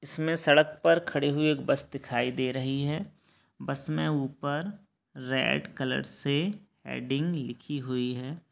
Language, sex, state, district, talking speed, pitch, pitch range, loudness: Hindi, male, Bihar, Begusarai, 150 wpm, 145 Hz, 130-155 Hz, -29 LUFS